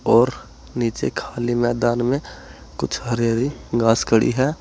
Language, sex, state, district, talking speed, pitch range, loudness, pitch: Hindi, male, Uttar Pradesh, Saharanpur, 145 wpm, 115-125 Hz, -21 LUFS, 120 Hz